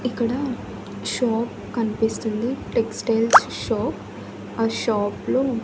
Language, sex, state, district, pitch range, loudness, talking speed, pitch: Telugu, female, Andhra Pradesh, Annamaya, 225-245 Hz, -23 LUFS, 85 wpm, 230 Hz